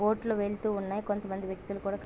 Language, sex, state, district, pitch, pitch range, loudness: Telugu, female, Andhra Pradesh, Visakhapatnam, 205 Hz, 195-210 Hz, -33 LUFS